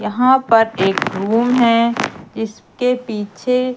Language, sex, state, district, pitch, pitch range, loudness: Hindi, female, Madhya Pradesh, Umaria, 230 Hz, 220-250 Hz, -16 LUFS